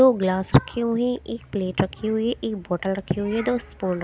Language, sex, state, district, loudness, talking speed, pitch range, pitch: Hindi, female, Haryana, Charkhi Dadri, -24 LUFS, 235 wpm, 185-235 Hz, 210 Hz